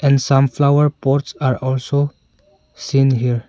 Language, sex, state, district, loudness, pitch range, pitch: English, male, Arunachal Pradesh, Longding, -17 LUFS, 130-140 Hz, 135 Hz